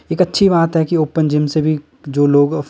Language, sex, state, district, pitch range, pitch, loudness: Hindi, male, Himachal Pradesh, Shimla, 150-165 Hz, 155 Hz, -15 LUFS